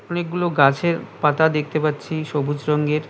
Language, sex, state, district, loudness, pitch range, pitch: Bengali, male, West Bengal, Cooch Behar, -20 LUFS, 150-165 Hz, 155 Hz